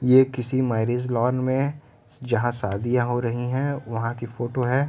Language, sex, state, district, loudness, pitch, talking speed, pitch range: Hindi, male, Uttar Pradesh, Varanasi, -24 LUFS, 125 Hz, 185 wpm, 120-130 Hz